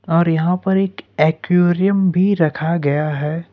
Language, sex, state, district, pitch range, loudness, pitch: Hindi, male, Jharkhand, Ranchi, 160-185 Hz, -17 LUFS, 170 Hz